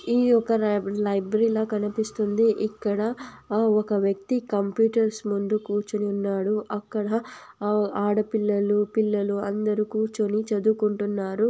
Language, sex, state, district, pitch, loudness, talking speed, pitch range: Telugu, female, Andhra Pradesh, Anantapur, 210 Hz, -25 LUFS, 90 wpm, 205-220 Hz